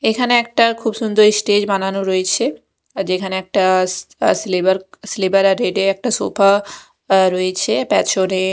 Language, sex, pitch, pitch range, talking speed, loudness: Bengali, female, 195 Hz, 190-215 Hz, 135 wpm, -16 LUFS